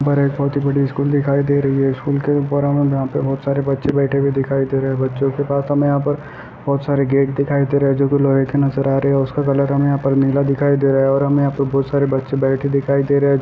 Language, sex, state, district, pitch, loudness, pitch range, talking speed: Hindi, male, Uttar Pradesh, Ghazipur, 140 Hz, -17 LUFS, 135-140 Hz, 280 wpm